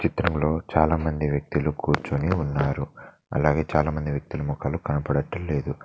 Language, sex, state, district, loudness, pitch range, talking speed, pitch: Telugu, male, Telangana, Mahabubabad, -25 LUFS, 70-80 Hz, 115 wpm, 75 Hz